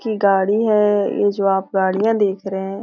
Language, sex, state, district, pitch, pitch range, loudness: Hindi, female, Bihar, Jahanabad, 200 Hz, 195-210 Hz, -18 LUFS